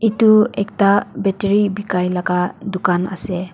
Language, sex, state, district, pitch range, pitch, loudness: Nagamese, female, Nagaland, Dimapur, 180-205 Hz, 195 Hz, -17 LUFS